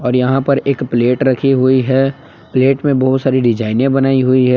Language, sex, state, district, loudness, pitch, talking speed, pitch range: Hindi, male, Jharkhand, Palamu, -14 LUFS, 130 Hz, 195 wpm, 125-135 Hz